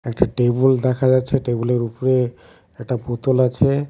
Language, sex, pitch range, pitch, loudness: Bengali, male, 120-130 Hz, 125 Hz, -19 LUFS